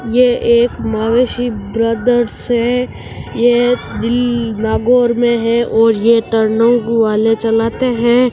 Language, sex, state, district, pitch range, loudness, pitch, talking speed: Marwari, female, Rajasthan, Nagaur, 225-245 Hz, -14 LUFS, 235 Hz, 65 wpm